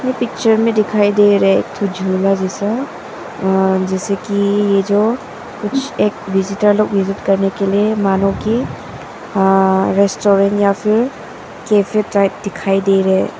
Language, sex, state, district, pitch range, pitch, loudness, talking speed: Hindi, female, Arunachal Pradesh, Papum Pare, 195-210 Hz, 200 Hz, -15 LUFS, 150 wpm